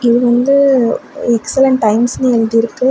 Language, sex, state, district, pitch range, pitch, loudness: Tamil, female, Tamil Nadu, Kanyakumari, 230-265 Hz, 240 Hz, -12 LUFS